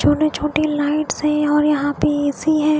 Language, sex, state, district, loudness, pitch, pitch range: Hindi, female, Odisha, Khordha, -18 LUFS, 300 Hz, 290-305 Hz